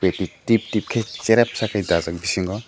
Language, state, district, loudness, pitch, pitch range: Kokborok, Tripura, Dhalai, -21 LUFS, 105 Hz, 95-115 Hz